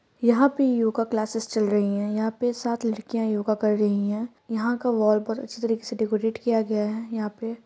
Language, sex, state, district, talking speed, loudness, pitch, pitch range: Hindi, female, Chhattisgarh, Kabirdham, 225 wpm, -25 LUFS, 225 Hz, 215-235 Hz